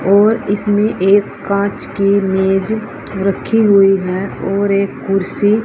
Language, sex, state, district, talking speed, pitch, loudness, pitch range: Hindi, female, Haryana, Rohtak, 125 wpm, 200 Hz, -14 LUFS, 195-205 Hz